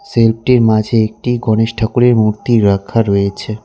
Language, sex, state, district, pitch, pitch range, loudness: Bengali, male, West Bengal, Cooch Behar, 110 Hz, 110-120 Hz, -13 LUFS